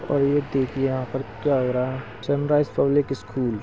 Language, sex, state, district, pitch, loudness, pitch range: Hindi, male, Chhattisgarh, Balrampur, 135 Hz, -24 LUFS, 125-140 Hz